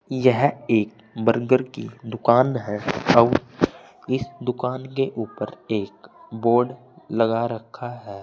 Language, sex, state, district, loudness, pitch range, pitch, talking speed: Hindi, male, Uttar Pradesh, Saharanpur, -22 LUFS, 115-130 Hz, 120 Hz, 115 wpm